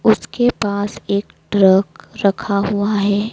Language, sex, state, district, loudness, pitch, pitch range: Hindi, female, Madhya Pradesh, Dhar, -17 LUFS, 205 Hz, 200-210 Hz